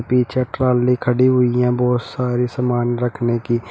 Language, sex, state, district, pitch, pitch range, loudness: Hindi, male, Uttar Pradesh, Shamli, 125 Hz, 120-125 Hz, -18 LUFS